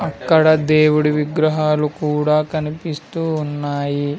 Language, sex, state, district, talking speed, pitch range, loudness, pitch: Telugu, male, Andhra Pradesh, Sri Satya Sai, 85 wpm, 150-155 Hz, -17 LUFS, 150 Hz